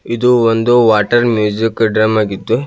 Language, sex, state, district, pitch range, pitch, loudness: Kannada, male, Karnataka, Belgaum, 110-120 Hz, 115 Hz, -12 LUFS